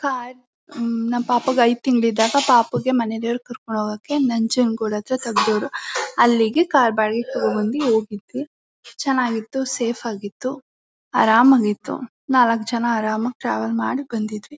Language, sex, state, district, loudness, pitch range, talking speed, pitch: Kannada, female, Karnataka, Mysore, -20 LUFS, 220-255 Hz, 130 wpm, 235 Hz